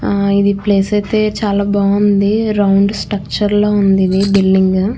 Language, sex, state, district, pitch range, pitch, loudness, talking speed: Telugu, female, Andhra Pradesh, Krishna, 195-205 Hz, 200 Hz, -13 LUFS, 130 wpm